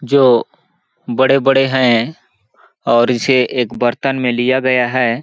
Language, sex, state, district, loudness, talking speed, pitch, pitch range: Hindi, male, Chhattisgarh, Balrampur, -14 LUFS, 125 wpm, 130 Hz, 120-135 Hz